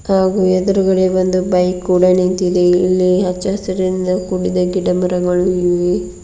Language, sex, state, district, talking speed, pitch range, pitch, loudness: Kannada, female, Karnataka, Bidar, 125 wpm, 180-185 Hz, 185 Hz, -15 LUFS